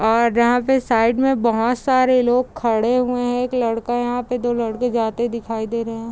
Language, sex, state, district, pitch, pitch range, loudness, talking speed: Hindi, female, Bihar, Gopalganj, 240 Hz, 230-250 Hz, -19 LUFS, 245 wpm